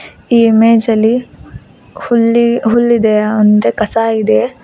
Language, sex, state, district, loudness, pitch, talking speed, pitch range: Kannada, female, Karnataka, Koppal, -11 LUFS, 225 Hz, 105 wpm, 215-235 Hz